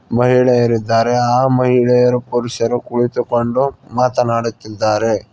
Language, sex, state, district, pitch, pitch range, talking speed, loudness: Kannada, male, Karnataka, Koppal, 120 Hz, 115-125 Hz, 70 wpm, -15 LUFS